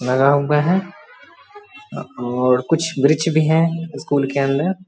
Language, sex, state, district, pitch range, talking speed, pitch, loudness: Hindi, male, Bihar, Muzaffarpur, 135-165 Hz, 135 wpm, 150 Hz, -18 LUFS